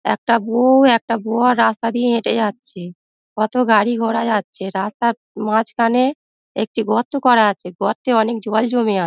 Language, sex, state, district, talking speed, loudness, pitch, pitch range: Bengali, female, West Bengal, Dakshin Dinajpur, 150 wpm, -17 LUFS, 230 Hz, 215-240 Hz